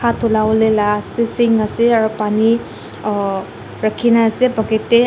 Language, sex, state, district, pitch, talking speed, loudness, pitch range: Nagamese, female, Nagaland, Dimapur, 220 Hz, 140 wpm, -16 LUFS, 215-235 Hz